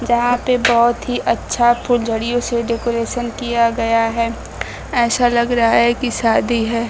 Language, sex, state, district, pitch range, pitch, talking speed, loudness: Hindi, female, Bihar, Kaimur, 230-245 Hz, 235 Hz, 155 wpm, -17 LUFS